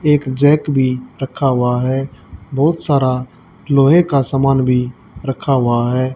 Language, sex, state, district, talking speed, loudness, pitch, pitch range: Hindi, female, Haryana, Charkhi Dadri, 145 wpm, -15 LUFS, 135 Hz, 125-140 Hz